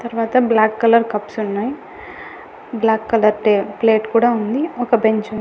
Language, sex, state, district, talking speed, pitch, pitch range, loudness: Telugu, female, Andhra Pradesh, Annamaya, 155 wpm, 230 Hz, 215-245 Hz, -17 LUFS